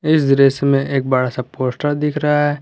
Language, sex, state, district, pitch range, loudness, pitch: Hindi, male, Jharkhand, Garhwa, 130-150 Hz, -17 LUFS, 140 Hz